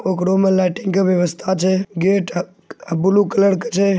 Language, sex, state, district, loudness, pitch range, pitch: Angika, male, Bihar, Begusarai, -17 LUFS, 180-195 Hz, 190 Hz